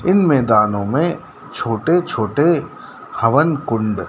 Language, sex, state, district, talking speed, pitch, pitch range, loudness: Hindi, male, Madhya Pradesh, Dhar, 105 wpm, 140 Hz, 115-170 Hz, -17 LUFS